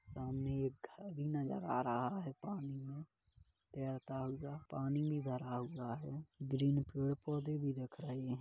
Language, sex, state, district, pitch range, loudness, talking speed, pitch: Hindi, male, Chhattisgarh, Kabirdham, 130-145 Hz, -42 LUFS, 170 wpm, 135 Hz